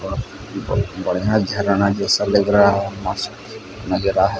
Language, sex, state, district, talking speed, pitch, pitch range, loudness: Hindi, male, Odisha, Sambalpur, 150 wpm, 100 Hz, 100-105 Hz, -19 LUFS